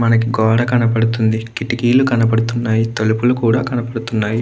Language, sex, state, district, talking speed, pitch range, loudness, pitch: Telugu, male, Andhra Pradesh, Krishna, 110 wpm, 115-120 Hz, -16 LUFS, 115 Hz